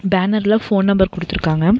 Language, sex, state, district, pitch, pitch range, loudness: Tamil, female, Tamil Nadu, Nilgiris, 195 Hz, 185-205 Hz, -17 LUFS